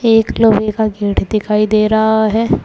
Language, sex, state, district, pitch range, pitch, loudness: Hindi, female, Uttar Pradesh, Saharanpur, 215-220 Hz, 215 Hz, -13 LUFS